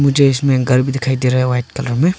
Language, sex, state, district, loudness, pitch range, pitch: Hindi, male, Arunachal Pradesh, Longding, -15 LUFS, 125-140 Hz, 130 Hz